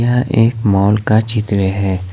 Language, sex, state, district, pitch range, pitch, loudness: Hindi, male, Jharkhand, Ranchi, 100-115 Hz, 105 Hz, -14 LUFS